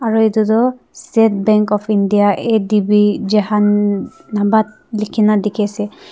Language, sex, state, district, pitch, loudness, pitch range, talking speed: Nagamese, female, Nagaland, Dimapur, 210 Hz, -15 LUFS, 205-220 Hz, 125 wpm